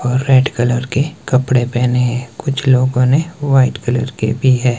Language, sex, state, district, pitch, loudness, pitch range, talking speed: Hindi, male, Himachal Pradesh, Shimla, 125 Hz, -15 LUFS, 125-135 Hz, 190 wpm